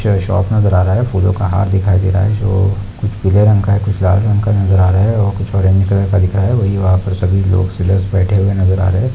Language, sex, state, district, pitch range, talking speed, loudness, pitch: Hindi, male, Rajasthan, Nagaur, 95-100 Hz, 300 wpm, -13 LUFS, 100 Hz